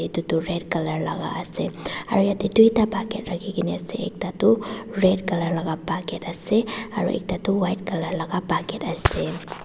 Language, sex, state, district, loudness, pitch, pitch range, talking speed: Nagamese, female, Nagaland, Dimapur, -24 LUFS, 195 Hz, 170-215 Hz, 180 wpm